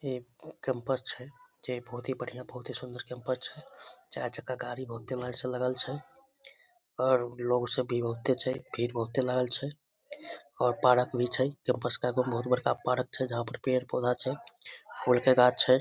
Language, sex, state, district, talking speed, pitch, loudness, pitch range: Maithili, male, Bihar, Samastipur, 200 wpm, 125 Hz, -31 LUFS, 125-130 Hz